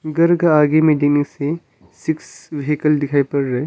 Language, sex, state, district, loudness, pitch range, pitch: Hindi, male, Arunachal Pradesh, Longding, -17 LUFS, 145-155 Hz, 150 Hz